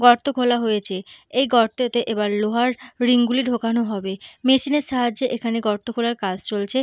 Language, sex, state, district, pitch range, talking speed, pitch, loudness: Bengali, female, West Bengal, Purulia, 215-250 Hz, 165 wpm, 240 Hz, -21 LUFS